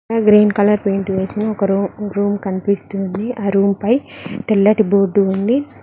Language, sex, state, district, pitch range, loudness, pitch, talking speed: Telugu, female, Telangana, Mahabubabad, 195-215 Hz, -16 LUFS, 205 Hz, 175 wpm